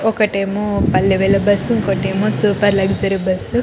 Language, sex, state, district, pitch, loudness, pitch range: Telugu, female, Andhra Pradesh, Krishna, 200 Hz, -16 LUFS, 195-210 Hz